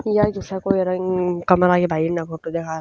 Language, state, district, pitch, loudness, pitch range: Haryanvi, Haryana, Rohtak, 180 Hz, -20 LUFS, 165-190 Hz